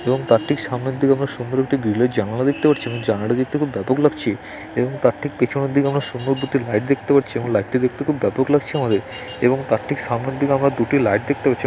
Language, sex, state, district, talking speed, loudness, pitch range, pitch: Bengali, male, West Bengal, Dakshin Dinajpur, 230 wpm, -20 LUFS, 120-140 Hz, 135 Hz